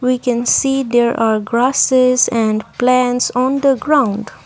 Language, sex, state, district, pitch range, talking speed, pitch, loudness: English, female, Assam, Kamrup Metropolitan, 235-260 Hz, 150 wpm, 250 Hz, -14 LUFS